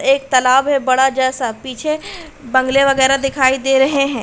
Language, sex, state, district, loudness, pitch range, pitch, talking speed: Hindi, female, Uttar Pradesh, Hamirpur, -15 LUFS, 260-275 Hz, 265 Hz, 170 wpm